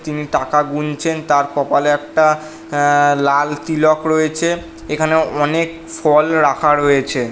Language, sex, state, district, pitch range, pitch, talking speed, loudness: Bengali, male, West Bengal, North 24 Parganas, 145-160 Hz, 150 Hz, 130 wpm, -16 LUFS